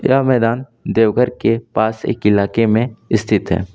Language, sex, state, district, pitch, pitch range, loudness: Hindi, male, Jharkhand, Deoghar, 115 Hz, 105-120 Hz, -16 LUFS